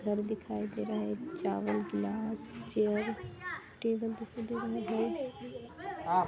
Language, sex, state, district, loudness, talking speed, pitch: Hindi, female, Chhattisgarh, Sarguja, -36 LUFS, 125 wpm, 215 Hz